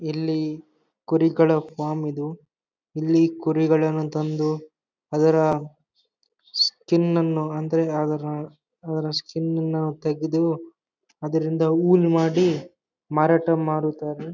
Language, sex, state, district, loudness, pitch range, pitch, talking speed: Kannada, male, Karnataka, Bellary, -23 LUFS, 155-165 Hz, 160 Hz, 90 wpm